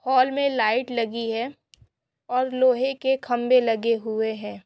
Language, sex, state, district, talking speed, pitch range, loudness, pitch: Hindi, female, Chhattisgarh, Korba, 155 wpm, 225-260 Hz, -23 LUFS, 245 Hz